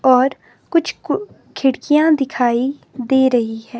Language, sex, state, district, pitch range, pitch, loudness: Hindi, female, Himachal Pradesh, Shimla, 245-280 Hz, 260 Hz, -17 LUFS